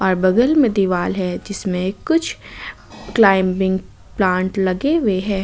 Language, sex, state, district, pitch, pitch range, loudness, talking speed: Hindi, female, Jharkhand, Ranchi, 190 Hz, 185-210 Hz, -18 LUFS, 120 wpm